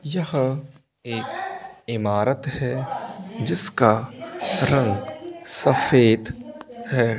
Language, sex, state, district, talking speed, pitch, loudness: Hindi, male, Bihar, Begusarai, 65 wpm, 135 Hz, -22 LUFS